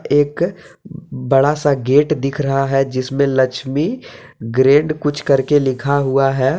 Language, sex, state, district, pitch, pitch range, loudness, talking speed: Hindi, male, Jharkhand, Deoghar, 140 Hz, 135-145 Hz, -16 LUFS, 135 wpm